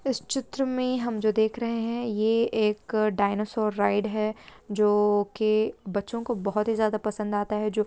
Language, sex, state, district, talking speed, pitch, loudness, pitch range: Hindi, female, Bihar, Bhagalpur, 185 wpm, 215 Hz, -26 LUFS, 210-230 Hz